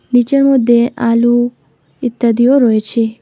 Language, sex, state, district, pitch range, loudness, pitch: Bengali, female, West Bengal, Alipurduar, 235-250 Hz, -12 LUFS, 240 Hz